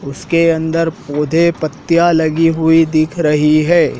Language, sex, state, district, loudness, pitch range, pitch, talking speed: Hindi, male, Madhya Pradesh, Dhar, -13 LUFS, 155-165 Hz, 165 Hz, 135 wpm